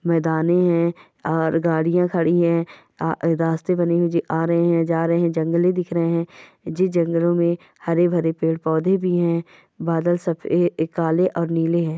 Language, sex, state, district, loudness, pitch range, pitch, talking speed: Hindi, female, Goa, North and South Goa, -20 LUFS, 165-175 Hz, 170 Hz, 190 wpm